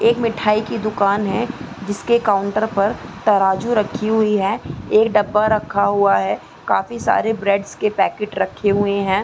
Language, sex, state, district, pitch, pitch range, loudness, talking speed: Hindi, female, Bihar, East Champaran, 205 Hz, 195-220 Hz, -18 LUFS, 160 wpm